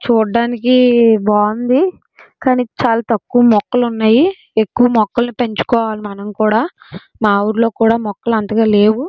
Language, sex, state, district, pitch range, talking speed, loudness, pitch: Telugu, female, Andhra Pradesh, Srikakulam, 215-245 Hz, 105 wpm, -14 LUFS, 230 Hz